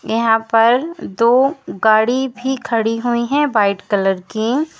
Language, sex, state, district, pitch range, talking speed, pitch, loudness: Hindi, female, Uttar Pradesh, Lalitpur, 220-265 Hz, 135 wpm, 230 Hz, -16 LUFS